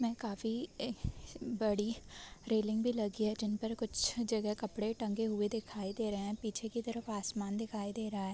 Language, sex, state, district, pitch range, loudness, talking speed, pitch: Hindi, female, Chhattisgarh, Bilaspur, 210-230 Hz, -38 LUFS, 180 wpm, 220 Hz